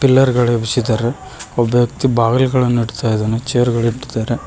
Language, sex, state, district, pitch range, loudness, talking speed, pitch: Kannada, male, Karnataka, Koppal, 115-125 Hz, -16 LUFS, 145 wpm, 120 Hz